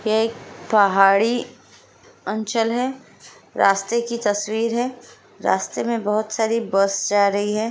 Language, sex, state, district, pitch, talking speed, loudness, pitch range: Hindi, female, Bihar, Lakhisarai, 220 Hz, 130 wpm, -20 LUFS, 205-235 Hz